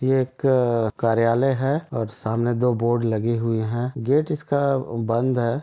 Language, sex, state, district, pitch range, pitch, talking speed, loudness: Hindi, male, Chhattisgarh, Bilaspur, 115-135 Hz, 120 Hz, 160 wpm, -22 LUFS